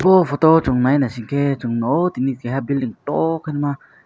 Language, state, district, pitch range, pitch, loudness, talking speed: Kokborok, Tripura, West Tripura, 125-160 Hz, 140 Hz, -19 LUFS, 205 wpm